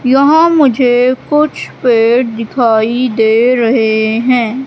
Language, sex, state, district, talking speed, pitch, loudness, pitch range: Hindi, female, Madhya Pradesh, Katni, 105 wpm, 245 Hz, -11 LUFS, 230-260 Hz